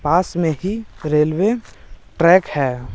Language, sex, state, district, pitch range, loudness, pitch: Hindi, male, Bihar, West Champaran, 150-190 Hz, -18 LUFS, 170 Hz